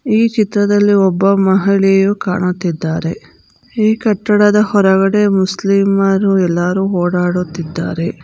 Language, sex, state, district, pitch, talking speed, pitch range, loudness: Kannada, female, Karnataka, Bangalore, 195 Hz, 80 wpm, 180-205 Hz, -13 LUFS